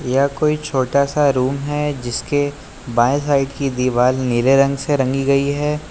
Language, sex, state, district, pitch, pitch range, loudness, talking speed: Hindi, male, Uttar Pradesh, Lucknow, 140 Hz, 130-145 Hz, -18 LUFS, 170 wpm